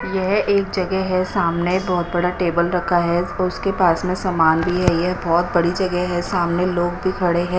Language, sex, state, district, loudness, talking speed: Hindi, female, Odisha, Nuapada, -19 LUFS, 205 wpm